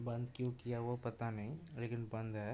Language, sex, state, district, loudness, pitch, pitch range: Hindi, male, Uttar Pradesh, Budaun, -43 LUFS, 120 Hz, 115-120 Hz